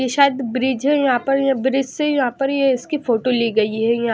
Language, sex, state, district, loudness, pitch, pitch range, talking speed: Hindi, female, Haryana, Jhajjar, -18 LUFS, 260 Hz, 240-275 Hz, 275 wpm